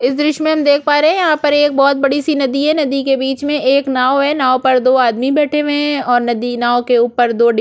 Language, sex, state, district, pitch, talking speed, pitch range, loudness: Hindi, female, Chhattisgarh, Korba, 275 Hz, 270 wpm, 250-295 Hz, -14 LUFS